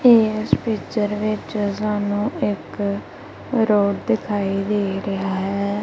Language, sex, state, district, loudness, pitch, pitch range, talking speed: Punjabi, female, Punjab, Kapurthala, -21 LUFS, 205 Hz, 200-215 Hz, 105 wpm